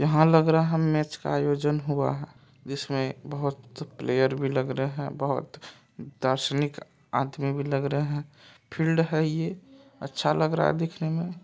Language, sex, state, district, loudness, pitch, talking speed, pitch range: Maithili, male, Bihar, Supaul, -27 LUFS, 145 Hz, 165 wpm, 140-160 Hz